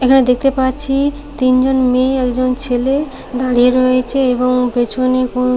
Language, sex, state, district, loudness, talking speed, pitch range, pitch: Bengali, female, West Bengal, Paschim Medinipur, -14 LUFS, 130 wpm, 250-265 Hz, 255 Hz